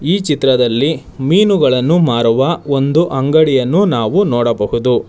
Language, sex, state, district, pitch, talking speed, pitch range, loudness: Kannada, male, Karnataka, Bangalore, 135 Hz, 95 wpm, 125-165 Hz, -13 LUFS